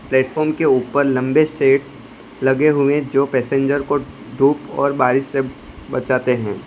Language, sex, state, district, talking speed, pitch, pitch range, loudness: Hindi, male, Gujarat, Valsad, 145 wpm, 135 Hz, 130-140 Hz, -18 LUFS